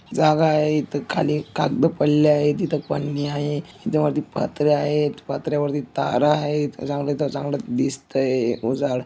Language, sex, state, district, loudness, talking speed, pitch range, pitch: Marathi, male, Maharashtra, Dhule, -22 LUFS, 150 wpm, 145-150 Hz, 145 Hz